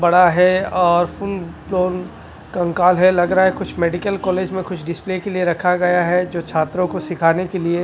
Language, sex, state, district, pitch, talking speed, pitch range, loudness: Hindi, male, Maharashtra, Washim, 180 Hz, 190 wpm, 175-185 Hz, -18 LUFS